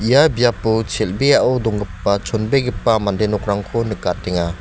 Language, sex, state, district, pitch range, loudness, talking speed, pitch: Garo, male, Meghalaya, West Garo Hills, 100-120 Hz, -18 LUFS, 105 wpm, 110 Hz